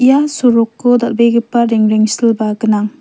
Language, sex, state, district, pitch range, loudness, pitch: Garo, female, Meghalaya, West Garo Hills, 215-245 Hz, -12 LUFS, 235 Hz